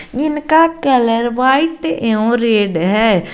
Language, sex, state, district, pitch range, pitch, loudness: Hindi, female, Jharkhand, Garhwa, 220-300 Hz, 240 Hz, -14 LUFS